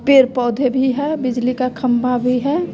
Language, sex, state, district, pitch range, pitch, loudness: Hindi, female, Bihar, West Champaran, 250-270 Hz, 255 Hz, -17 LUFS